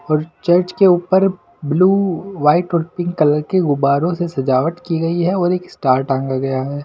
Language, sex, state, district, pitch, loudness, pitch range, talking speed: Hindi, male, Delhi, New Delhi, 170 Hz, -16 LUFS, 145-180 Hz, 190 wpm